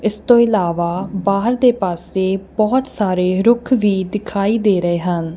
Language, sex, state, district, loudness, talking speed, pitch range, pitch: Punjabi, female, Punjab, Kapurthala, -16 LUFS, 155 wpm, 185-220 Hz, 200 Hz